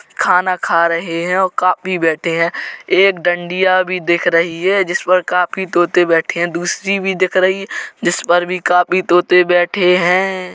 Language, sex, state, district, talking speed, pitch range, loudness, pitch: Hindi, male, Uttar Pradesh, Hamirpur, 175 wpm, 175-185 Hz, -14 LUFS, 180 Hz